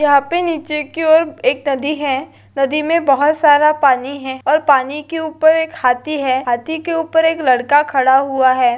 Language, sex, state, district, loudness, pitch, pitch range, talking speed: Maithili, female, Bihar, Lakhisarai, -15 LUFS, 295 Hz, 270-320 Hz, 200 wpm